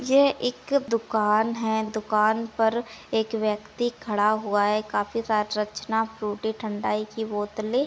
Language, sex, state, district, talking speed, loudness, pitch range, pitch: Hindi, female, Uttar Pradesh, Jyotiba Phule Nagar, 145 wpm, -25 LUFS, 210-225 Hz, 220 Hz